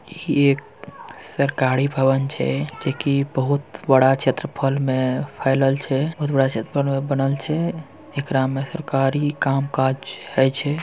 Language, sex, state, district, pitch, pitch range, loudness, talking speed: Hindi, male, Bihar, Purnia, 135 Hz, 135-145 Hz, -21 LUFS, 145 wpm